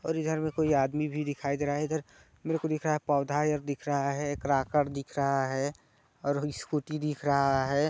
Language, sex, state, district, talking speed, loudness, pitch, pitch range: Hindi, male, Chhattisgarh, Balrampur, 205 wpm, -30 LUFS, 145 Hz, 140-150 Hz